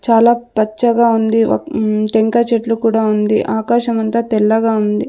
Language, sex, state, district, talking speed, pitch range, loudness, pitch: Telugu, female, Andhra Pradesh, Sri Satya Sai, 155 wpm, 215-235 Hz, -14 LUFS, 225 Hz